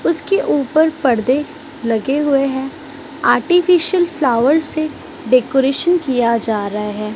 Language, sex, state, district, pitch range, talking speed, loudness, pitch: Hindi, female, Maharashtra, Mumbai Suburban, 250-315 Hz, 115 wpm, -16 LUFS, 285 Hz